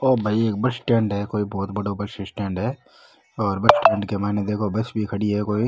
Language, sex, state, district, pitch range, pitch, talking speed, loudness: Rajasthani, male, Rajasthan, Nagaur, 100-110 Hz, 105 Hz, 245 wpm, -22 LUFS